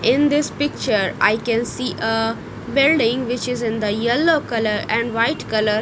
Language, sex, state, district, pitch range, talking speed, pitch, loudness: English, female, Punjab, Kapurthala, 225-275 Hz, 175 wpm, 230 Hz, -19 LUFS